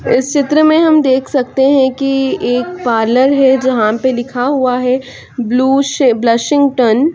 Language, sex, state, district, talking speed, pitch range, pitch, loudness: Hindi, female, Chhattisgarh, Raigarh, 175 wpm, 245-280 Hz, 260 Hz, -12 LUFS